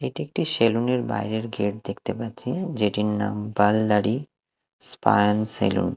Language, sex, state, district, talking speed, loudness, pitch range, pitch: Bengali, male, Odisha, Malkangiri, 160 wpm, -24 LUFS, 105-115 Hz, 105 Hz